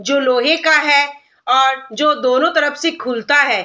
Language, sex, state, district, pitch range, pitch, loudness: Hindi, female, Bihar, Sitamarhi, 260-300 Hz, 285 Hz, -14 LUFS